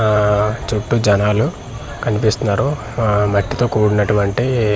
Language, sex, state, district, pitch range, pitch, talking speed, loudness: Telugu, male, Andhra Pradesh, Manyam, 105-120 Hz, 105 Hz, 100 wpm, -17 LUFS